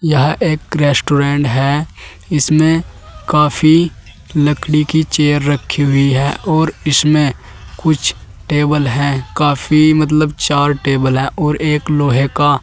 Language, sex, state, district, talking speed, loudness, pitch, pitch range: Hindi, male, Uttar Pradesh, Saharanpur, 125 wpm, -14 LUFS, 145 Hz, 140-155 Hz